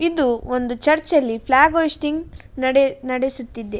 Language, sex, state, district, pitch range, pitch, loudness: Kannada, female, Karnataka, Dakshina Kannada, 250-305 Hz, 265 Hz, -18 LUFS